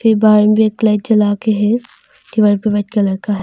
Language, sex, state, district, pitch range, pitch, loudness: Hindi, female, Arunachal Pradesh, Longding, 205-220 Hz, 210 Hz, -14 LUFS